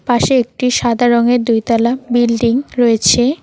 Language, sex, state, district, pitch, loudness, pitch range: Bengali, female, West Bengal, Cooch Behar, 240 Hz, -13 LUFS, 235-250 Hz